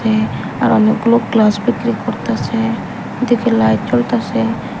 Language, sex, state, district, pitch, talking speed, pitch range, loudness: Bengali, female, Tripura, Unakoti, 225 Hz, 110 wpm, 210-235 Hz, -15 LUFS